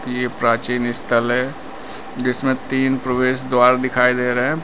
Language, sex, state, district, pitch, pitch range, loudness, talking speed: Hindi, male, Uttar Pradesh, Lalitpur, 125 Hz, 125-130 Hz, -18 LUFS, 155 wpm